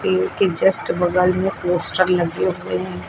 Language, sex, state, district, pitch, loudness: Hindi, female, Uttar Pradesh, Lucknow, 175 Hz, -19 LUFS